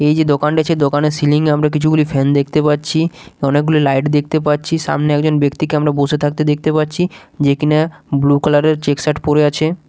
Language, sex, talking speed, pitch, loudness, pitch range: Bengali, male, 200 wpm, 150 Hz, -15 LUFS, 145-155 Hz